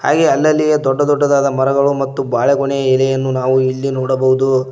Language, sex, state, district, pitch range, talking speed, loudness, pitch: Kannada, male, Karnataka, Koppal, 130-140 Hz, 140 wpm, -14 LUFS, 135 Hz